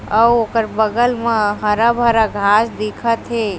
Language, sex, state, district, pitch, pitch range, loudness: Chhattisgarhi, female, Chhattisgarh, Raigarh, 225 Hz, 210-230 Hz, -16 LUFS